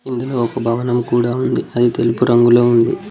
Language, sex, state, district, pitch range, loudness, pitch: Telugu, male, Telangana, Mahabubabad, 120-125 Hz, -15 LUFS, 120 Hz